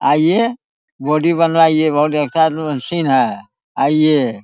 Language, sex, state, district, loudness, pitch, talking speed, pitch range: Hindi, male, Bihar, Araria, -15 LUFS, 155 Hz, 110 wpm, 145-165 Hz